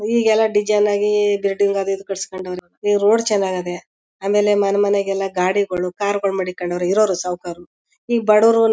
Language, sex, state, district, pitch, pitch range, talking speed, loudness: Kannada, female, Karnataka, Mysore, 200 Hz, 185-210 Hz, 150 wpm, -18 LUFS